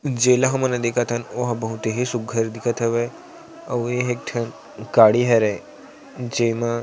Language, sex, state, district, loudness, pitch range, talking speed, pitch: Chhattisgarhi, male, Chhattisgarh, Sarguja, -21 LUFS, 115-125 Hz, 175 wpm, 120 Hz